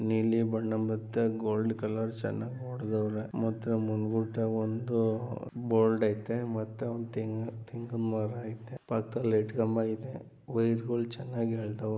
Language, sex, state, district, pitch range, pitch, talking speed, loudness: Kannada, male, Karnataka, Mysore, 110-115 Hz, 115 Hz, 115 wpm, -32 LUFS